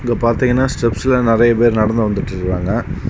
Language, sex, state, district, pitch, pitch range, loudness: Tamil, male, Tamil Nadu, Kanyakumari, 115 Hz, 110-125 Hz, -15 LUFS